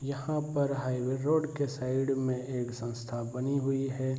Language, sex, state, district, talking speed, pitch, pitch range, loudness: Hindi, male, Bihar, Saharsa, 170 wpm, 135 Hz, 125-140 Hz, -32 LUFS